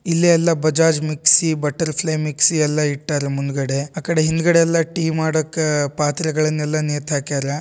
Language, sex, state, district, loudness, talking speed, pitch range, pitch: Kannada, male, Karnataka, Dharwad, -18 LUFS, 135 wpm, 150-160 Hz, 155 Hz